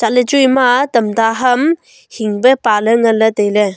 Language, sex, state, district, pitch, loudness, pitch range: Wancho, female, Arunachal Pradesh, Longding, 235 Hz, -13 LUFS, 220-260 Hz